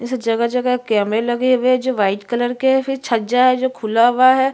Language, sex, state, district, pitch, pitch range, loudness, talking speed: Hindi, female, Chhattisgarh, Sukma, 245 Hz, 230-255 Hz, -17 LUFS, 240 wpm